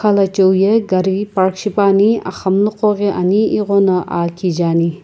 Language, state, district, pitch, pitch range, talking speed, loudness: Sumi, Nagaland, Kohima, 195 Hz, 185-205 Hz, 145 wpm, -15 LUFS